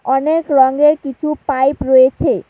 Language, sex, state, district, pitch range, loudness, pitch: Bengali, female, West Bengal, Alipurduar, 265-300 Hz, -14 LUFS, 275 Hz